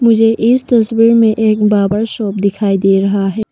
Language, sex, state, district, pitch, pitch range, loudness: Hindi, female, Arunachal Pradesh, Papum Pare, 215 Hz, 200-225 Hz, -12 LUFS